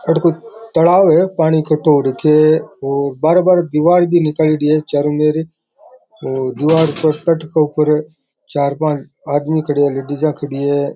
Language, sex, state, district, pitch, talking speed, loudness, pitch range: Rajasthani, male, Rajasthan, Nagaur, 155 Hz, 140 wpm, -14 LUFS, 145-160 Hz